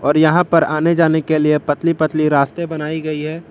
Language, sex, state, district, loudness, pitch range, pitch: Hindi, male, Jharkhand, Palamu, -16 LUFS, 150-165 Hz, 155 Hz